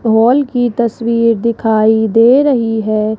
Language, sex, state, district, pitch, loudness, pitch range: Hindi, female, Rajasthan, Jaipur, 230 Hz, -12 LUFS, 220-240 Hz